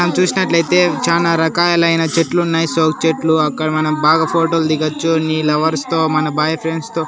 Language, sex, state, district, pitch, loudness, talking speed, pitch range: Telugu, male, Andhra Pradesh, Annamaya, 160 Hz, -15 LUFS, 180 wpm, 155-165 Hz